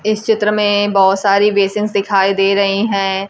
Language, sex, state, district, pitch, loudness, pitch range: Hindi, female, Bihar, Kaimur, 200 Hz, -14 LUFS, 195-210 Hz